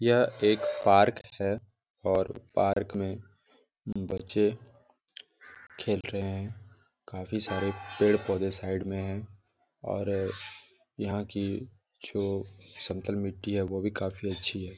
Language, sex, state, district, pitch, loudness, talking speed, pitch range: Hindi, male, Jharkhand, Jamtara, 100 Hz, -30 LUFS, 120 wpm, 95-105 Hz